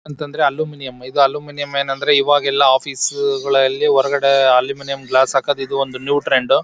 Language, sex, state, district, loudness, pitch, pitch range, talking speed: Kannada, male, Karnataka, Bellary, -16 LUFS, 140 Hz, 135-145 Hz, 155 wpm